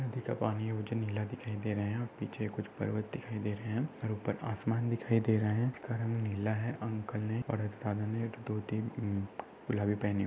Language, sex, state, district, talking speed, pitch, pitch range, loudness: Hindi, male, Maharashtra, Nagpur, 240 wpm, 110 Hz, 105-115 Hz, -36 LUFS